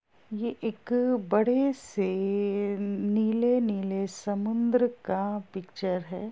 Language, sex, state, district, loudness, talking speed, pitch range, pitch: Hindi, female, Bihar, Gopalganj, -28 LUFS, 85 wpm, 195-235 Hz, 205 Hz